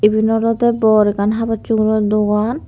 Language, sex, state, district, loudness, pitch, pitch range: Chakma, female, Tripura, Unakoti, -15 LUFS, 220 Hz, 210-225 Hz